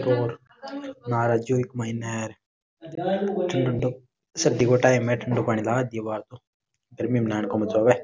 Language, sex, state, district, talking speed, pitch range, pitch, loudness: Rajasthani, male, Rajasthan, Nagaur, 125 wpm, 115-130 Hz, 125 Hz, -25 LUFS